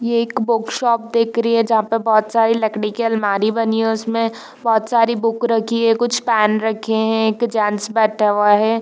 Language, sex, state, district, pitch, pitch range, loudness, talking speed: Hindi, female, Chhattisgarh, Bilaspur, 225 Hz, 220-230 Hz, -17 LUFS, 205 wpm